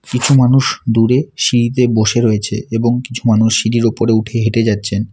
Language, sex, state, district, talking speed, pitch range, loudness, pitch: Bengali, male, West Bengal, Alipurduar, 165 wpm, 110-125 Hz, -14 LUFS, 115 Hz